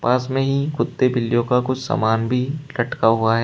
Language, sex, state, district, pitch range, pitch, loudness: Hindi, male, Uttar Pradesh, Shamli, 115-135 Hz, 125 Hz, -20 LUFS